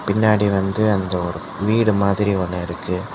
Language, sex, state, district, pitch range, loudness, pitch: Tamil, male, Tamil Nadu, Kanyakumari, 90-105 Hz, -19 LUFS, 100 Hz